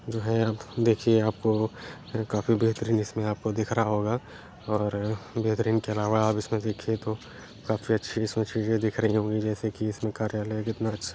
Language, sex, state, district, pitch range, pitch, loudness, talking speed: Kumaoni, male, Uttarakhand, Uttarkashi, 105-110 Hz, 110 Hz, -28 LUFS, 185 wpm